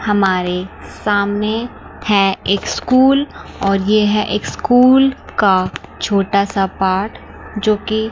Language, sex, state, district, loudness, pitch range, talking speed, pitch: Hindi, female, Chandigarh, Chandigarh, -15 LUFS, 195-220 Hz, 120 wpm, 205 Hz